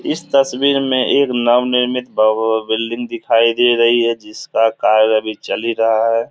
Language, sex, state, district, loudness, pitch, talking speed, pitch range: Hindi, male, Bihar, Samastipur, -15 LUFS, 115 Hz, 190 wpm, 110-125 Hz